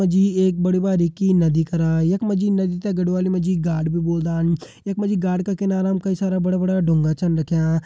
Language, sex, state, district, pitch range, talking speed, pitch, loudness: Hindi, male, Uttarakhand, Uttarkashi, 165-190 Hz, 230 wpm, 180 Hz, -20 LUFS